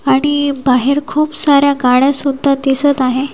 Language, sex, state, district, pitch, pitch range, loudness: Marathi, female, Maharashtra, Washim, 280 Hz, 265-285 Hz, -13 LUFS